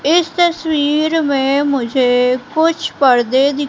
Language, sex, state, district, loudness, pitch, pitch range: Hindi, female, Madhya Pradesh, Katni, -14 LUFS, 285 Hz, 265-320 Hz